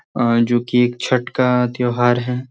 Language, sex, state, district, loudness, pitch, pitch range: Hindi, male, Bihar, Sitamarhi, -17 LUFS, 120 Hz, 120-125 Hz